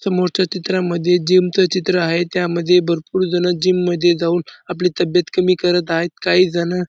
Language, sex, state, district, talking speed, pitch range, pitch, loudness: Marathi, male, Maharashtra, Dhule, 165 wpm, 175-185 Hz, 180 Hz, -17 LUFS